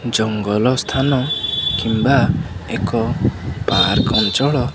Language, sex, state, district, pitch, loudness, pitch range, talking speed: Odia, male, Odisha, Khordha, 120 Hz, -17 LUFS, 110-135 Hz, 75 wpm